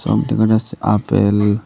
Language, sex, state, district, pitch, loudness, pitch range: Bengali, male, Tripura, Dhalai, 110 Hz, -16 LUFS, 105-110 Hz